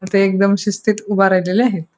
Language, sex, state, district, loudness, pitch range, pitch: Marathi, female, Goa, North and South Goa, -16 LUFS, 190-205 Hz, 195 Hz